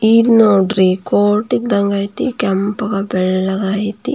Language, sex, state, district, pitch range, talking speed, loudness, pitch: Kannada, female, Karnataka, Belgaum, 195-220 Hz, 130 wpm, -15 LUFS, 205 Hz